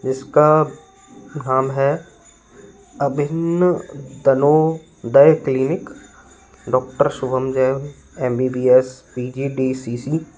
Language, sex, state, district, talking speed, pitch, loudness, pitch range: Hindi, male, Uttar Pradesh, Lalitpur, 70 wpm, 135 Hz, -18 LUFS, 130-150 Hz